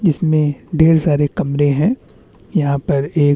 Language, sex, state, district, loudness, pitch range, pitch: Hindi, male, Chhattisgarh, Bastar, -16 LUFS, 145-165 Hz, 150 Hz